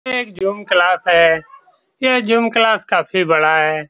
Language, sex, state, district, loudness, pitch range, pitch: Hindi, male, Bihar, Saran, -15 LUFS, 165-235 Hz, 195 Hz